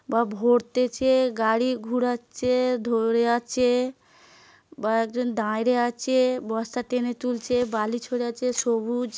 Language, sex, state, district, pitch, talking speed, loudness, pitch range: Bengali, female, West Bengal, Paschim Medinipur, 245 Hz, 110 wpm, -24 LUFS, 230-250 Hz